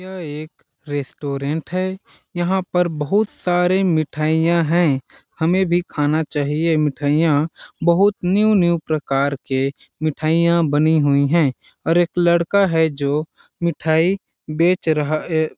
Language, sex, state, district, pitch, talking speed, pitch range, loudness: Hindi, male, Chhattisgarh, Balrampur, 160 Hz, 130 wpm, 150-175 Hz, -19 LUFS